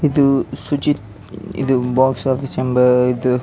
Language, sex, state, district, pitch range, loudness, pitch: Kannada, male, Karnataka, Dakshina Kannada, 125-135 Hz, -17 LUFS, 130 Hz